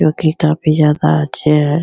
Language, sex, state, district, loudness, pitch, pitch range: Hindi, male, Bihar, Begusarai, -14 LUFS, 155 Hz, 150-155 Hz